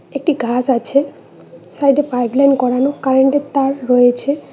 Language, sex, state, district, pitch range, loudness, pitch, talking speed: Bengali, female, West Bengal, Cooch Behar, 250-280 Hz, -15 LUFS, 270 Hz, 120 wpm